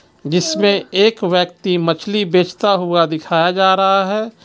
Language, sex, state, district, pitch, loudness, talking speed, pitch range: Hindi, male, Jharkhand, Ranchi, 185 Hz, -15 LUFS, 135 wpm, 175-200 Hz